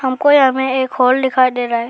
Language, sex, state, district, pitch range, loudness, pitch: Hindi, male, Arunachal Pradesh, Lower Dibang Valley, 255-265 Hz, -14 LUFS, 260 Hz